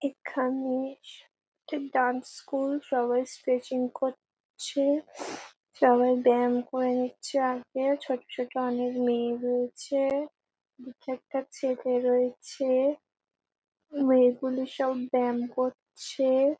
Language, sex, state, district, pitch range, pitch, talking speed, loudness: Bengali, female, West Bengal, Paschim Medinipur, 250-275 Hz, 260 Hz, 100 wpm, -28 LUFS